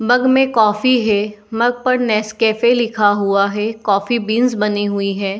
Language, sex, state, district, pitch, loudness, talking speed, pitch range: Hindi, female, Bihar, Saharsa, 215 Hz, -16 LUFS, 180 wpm, 205-240 Hz